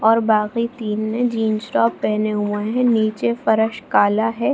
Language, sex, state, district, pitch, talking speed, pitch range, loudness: Hindi, female, Bihar, Jahanabad, 215 Hz, 170 wpm, 210-225 Hz, -19 LUFS